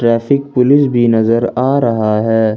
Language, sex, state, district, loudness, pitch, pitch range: Hindi, male, Jharkhand, Ranchi, -13 LUFS, 120 Hz, 115-135 Hz